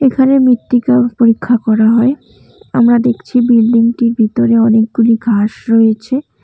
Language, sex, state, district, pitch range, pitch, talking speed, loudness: Bengali, female, West Bengal, Cooch Behar, 225-245 Hz, 235 Hz, 110 wpm, -11 LUFS